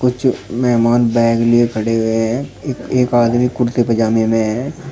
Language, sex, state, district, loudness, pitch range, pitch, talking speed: Hindi, male, Uttar Pradesh, Shamli, -15 LUFS, 115-125 Hz, 120 Hz, 170 wpm